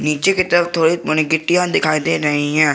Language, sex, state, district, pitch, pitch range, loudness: Hindi, male, Jharkhand, Garhwa, 160 Hz, 150-175 Hz, -16 LUFS